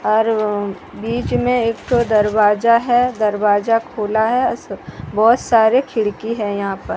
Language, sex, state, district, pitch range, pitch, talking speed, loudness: Hindi, female, Odisha, Sambalpur, 210-235 Hz, 220 Hz, 140 wpm, -17 LUFS